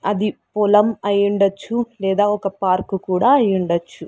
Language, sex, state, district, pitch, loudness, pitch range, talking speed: Telugu, female, Andhra Pradesh, Sri Satya Sai, 200 Hz, -18 LUFS, 190-210 Hz, 115 wpm